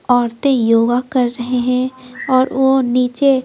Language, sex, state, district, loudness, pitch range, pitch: Hindi, female, Bihar, Patna, -15 LUFS, 245-260 Hz, 250 Hz